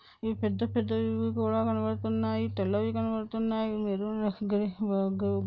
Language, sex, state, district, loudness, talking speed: Telugu, female, Andhra Pradesh, Anantapur, -30 LUFS, 65 wpm